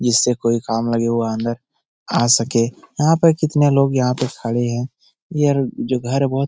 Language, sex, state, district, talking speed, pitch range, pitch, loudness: Hindi, male, Bihar, Jahanabad, 195 wpm, 115-140 Hz, 125 Hz, -18 LUFS